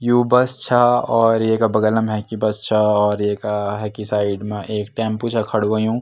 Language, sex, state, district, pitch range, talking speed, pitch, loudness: Garhwali, male, Uttarakhand, Tehri Garhwal, 105-115 Hz, 190 wpm, 110 Hz, -18 LUFS